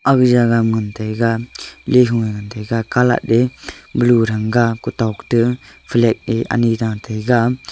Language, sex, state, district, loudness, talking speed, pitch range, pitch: Wancho, male, Arunachal Pradesh, Longding, -17 LUFS, 155 wpm, 110-120 Hz, 115 Hz